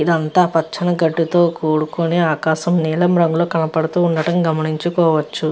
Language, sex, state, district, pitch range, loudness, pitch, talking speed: Telugu, female, Andhra Pradesh, Visakhapatnam, 160-175 Hz, -17 LUFS, 165 Hz, 120 wpm